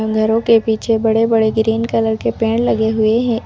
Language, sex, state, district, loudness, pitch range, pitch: Hindi, female, Uttar Pradesh, Lucknow, -15 LUFS, 220-230 Hz, 225 Hz